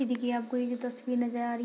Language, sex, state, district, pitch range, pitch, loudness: Hindi, female, Bihar, Madhepura, 240-250 Hz, 245 Hz, -32 LUFS